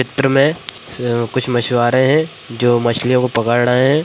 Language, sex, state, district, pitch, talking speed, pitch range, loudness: Hindi, female, Bihar, Madhepura, 125 Hz, 180 wpm, 120-135 Hz, -15 LUFS